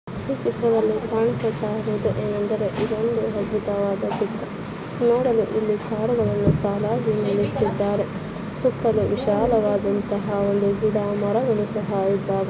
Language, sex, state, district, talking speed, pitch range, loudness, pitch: Kannada, female, Karnataka, Shimoga, 95 wpm, 200-220 Hz, -23 LUFS, 210 Hz